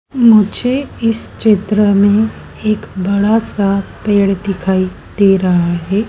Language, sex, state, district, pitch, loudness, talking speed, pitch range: Hindi, female, Madhya Pradesh, Dhar, 205 Hz, -14 LUFS, 120 wpm, 195-220 Hz